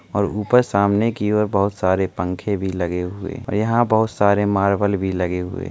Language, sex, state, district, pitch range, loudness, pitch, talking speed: Hindi, male, Uttar Pradesh, Muzaffarnagar, 95-105 Hz, -20 LUFS, 100 Hz, 210 wpm